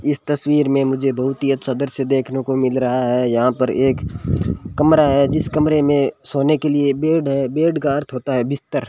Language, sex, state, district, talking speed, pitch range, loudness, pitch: Hindi, male, Rajasthan, Bikaner, 215 wpm, 130-150 Hz, -18 LUFS, 140 Hz